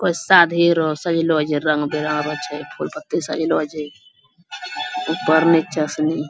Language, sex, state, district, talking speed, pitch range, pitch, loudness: Angika, female, Bihar, Bhagalpur, 145 wpm, 150-165 Hz, 155 Hz, -19 LUFS